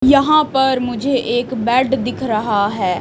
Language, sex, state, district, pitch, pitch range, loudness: Hindi, female, Chhattisgarh, Raipur, 250 Hz, 230-265 Hz, -16 LUFS